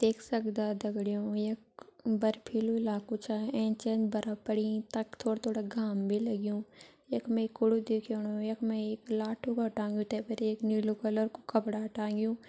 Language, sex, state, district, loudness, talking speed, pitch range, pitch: Garhwali, female, Uttarakhand, Uttarkashi, -33 LUFS, 175 wpm, 215-225 Hz, 220 Hz